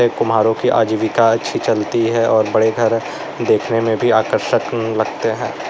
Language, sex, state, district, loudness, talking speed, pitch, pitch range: Hindi, male, Uttar Pradesh, Lalitpur, -16 LUFS, 160 wpm, 115 Hz, 110-115 Hz